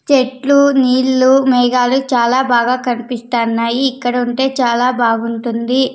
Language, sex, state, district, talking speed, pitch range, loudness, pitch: Telugu, female, Andhra Pradesh, Sri Satya Sai, 100 wpm, 240-260 Hz, -14 LUFS, 250 Hz